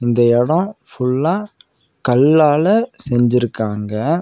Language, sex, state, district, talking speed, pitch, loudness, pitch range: Tamil, male, Tamil Nadu, Nilgiris, 70 wpm, 130 Hz, -16 LUFS, 120-165 Hz